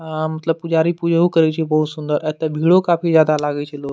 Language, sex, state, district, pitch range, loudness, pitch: Maithili, male, Bihar, Madhepura, 155-165 Hz, -17 LUFS, 160 Hz